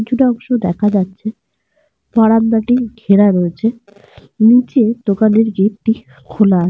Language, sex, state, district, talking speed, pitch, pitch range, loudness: Bengali, female, Jharkhand, Sahebganj, 80 wpm, 220 Hz, 200-235 Hz, -14 LUFS